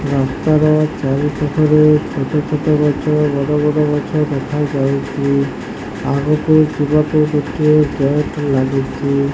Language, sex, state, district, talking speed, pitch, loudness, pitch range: Odia, male, Odisha, Sambalpur, 110 wpm, 150 Hz, -15 LUFS, 140-150 Hz